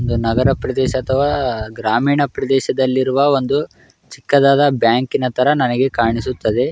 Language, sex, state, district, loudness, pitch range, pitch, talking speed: Kannada, male, Karnataka, Raichur, -16 LUFS, 120-140 Hz, 130 Hz, 115 wpm